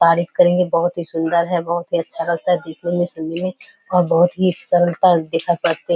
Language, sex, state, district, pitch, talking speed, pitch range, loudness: Hindi, female, Bihar, Kishanganj, 170 Hz, 210 wpm, 170-175 Hz, -18 LUFS